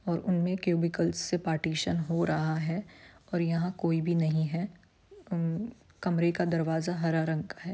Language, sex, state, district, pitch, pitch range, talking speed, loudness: Hindi, female, Bihar, Saran, 170 Hz, 160-180 Hz, 170 wpm, -30 LUFS